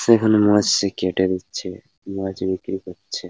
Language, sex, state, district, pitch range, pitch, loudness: Bengali, male, West Bengal, Paschim Medinipur, 95-105 Hz, 95 Hz, -20 LUFS